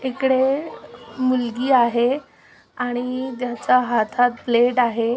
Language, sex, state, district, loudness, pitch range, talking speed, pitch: Marathi, female, Maharashtra, Aurangabad, -20 LUFS, 240-260 Hz, 80 wpm, 245 Hz